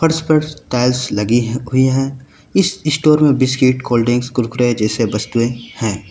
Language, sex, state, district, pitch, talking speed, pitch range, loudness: Hindi, male, Uttar Pradesh, Lucknow, 125 Hz, 145 wpm, 120-140 Hz, -16 LUFS